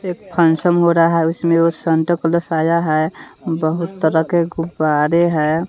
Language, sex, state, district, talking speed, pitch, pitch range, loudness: Hindi, female, Bihar, West Champaran, 170 wpm, 165 Hz, 160-170 Hz, -16 LUFS